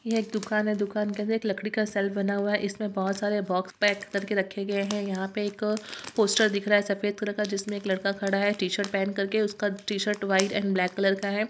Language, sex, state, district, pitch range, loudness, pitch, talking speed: Hindi, female, Bihar, Purnia, 200-210 Hz, -27 LUFS, 205 Hz, 270 wpm